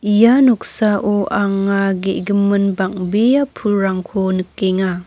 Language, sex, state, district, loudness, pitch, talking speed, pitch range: Garo, female, Meghalaya, North Garo Hills, -15 LUFS, 200 Hz, 85 wpm, 190-210 Hz